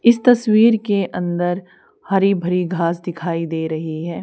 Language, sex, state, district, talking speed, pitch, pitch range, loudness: Hindi, female, Haryana, Charkhi Dadri, 155 wpm, 175 Hz, 170-200 Hz, -18 LUFS